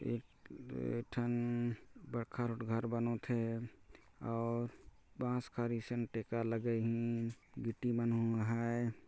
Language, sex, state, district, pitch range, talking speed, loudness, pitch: Chhattisgarhi, male, Chhattisgarh, Jashpur, 115-120 Hz, 120 wpm, -39 LUFS, 115 Hz